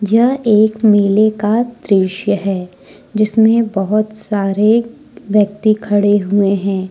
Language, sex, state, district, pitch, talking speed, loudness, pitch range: Hindi, female, Jharkhand, Deoghar, 210 Hz, 115 wpm, -14 LUFS, 200-220 Hz